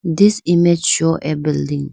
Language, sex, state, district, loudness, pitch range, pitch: English, female, Arunachal Pradesh, Lower Dibang Valley, -15 LUFS, 150-170 Hz, 165 Hz